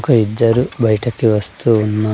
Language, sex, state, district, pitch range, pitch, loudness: Telugu, male, Andhra Pradesh, Sri Satya Sai, 105-120 Hz, 110 Hz, -15 LUFS